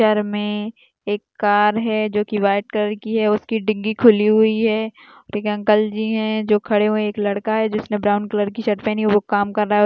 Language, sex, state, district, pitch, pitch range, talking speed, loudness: Hindi, female, Rajasthan, Churu, 210 Hz, 210-220 Hz, 245 wpm, -19 LUFS